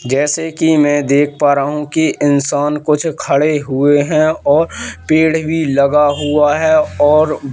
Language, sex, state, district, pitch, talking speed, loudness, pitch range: Hindi, male, Madhya Pradesh, Katni, 145 Hz, 160 wpm, -13 LUFS, 140-155 Hz